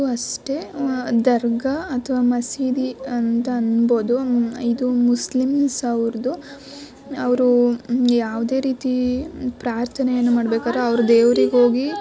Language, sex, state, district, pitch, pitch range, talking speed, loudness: Kannada, female, Karnataka, Dakshina Kannada, 250 Hz, 240-260 Hz, 90 wpm, -20 LUFS